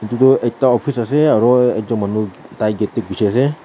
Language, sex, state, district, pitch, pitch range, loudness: Nagamese, male, Nagaland, Kohima, 120 Hz, 110-130 Hz, -16 LUFS